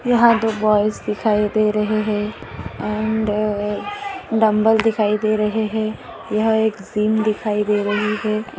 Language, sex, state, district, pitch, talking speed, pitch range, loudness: Hindi, female, Maharashtra, Aurangabad, 215 Hz, 145 wpm, 210-220 Hz, -19 LUFS